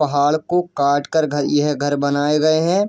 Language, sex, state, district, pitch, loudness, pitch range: Hindi, male, Jharkhand, Jamtara, 150 Hz, -18 LUFS, 145-160 Hz